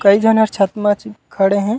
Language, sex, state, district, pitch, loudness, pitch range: Chhattisgarhi, male, Chhattisgarh, Raigarh, 210 Hz, -15 LUFS, 200-220 Hz